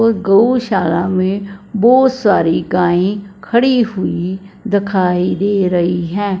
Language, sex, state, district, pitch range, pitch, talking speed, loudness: Hindi, female, Punjab, Fazilka, 180-210 Hz, 195 Hz, 110 wpm, -14 LUFS